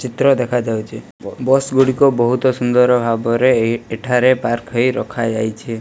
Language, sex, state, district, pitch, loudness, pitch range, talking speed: Odia, male, Odisha, Malkangiri, 125 Hz, -16 LUFS, 115-130 Hz, 125 wpm